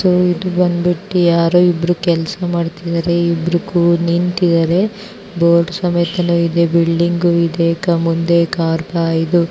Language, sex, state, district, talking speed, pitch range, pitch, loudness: Kannada, female, Karnataka, Bijapur, 95 wpm, 170-175 Hz, 170 Hz, -15 LUFS